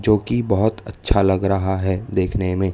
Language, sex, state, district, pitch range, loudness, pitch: Hindi, male, Chhattisgarh, Raipur, 95-105 Hz, -20 LUFS, 100 Hz